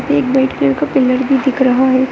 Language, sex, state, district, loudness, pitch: Hindi, female, Bihar, Begusarai, -13 LUFS, 260 Hz